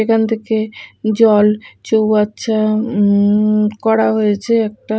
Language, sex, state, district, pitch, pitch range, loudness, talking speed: Bengali, female, Odisha, Malkangiri, 215 Hz, 210-220 Hz, -15 LUFS, 95 wpm